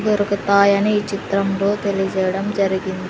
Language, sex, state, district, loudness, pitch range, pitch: Telugu, female, Andhra Pradesh, Sri Satya Sai, -18 LUFS, 195-200 Hz, 200 Hz